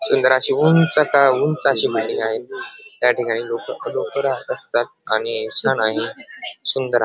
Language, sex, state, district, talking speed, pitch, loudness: Marathi, male, Maharashtra, Dhule, 145 wpm, 160 Hz, -18 LUFS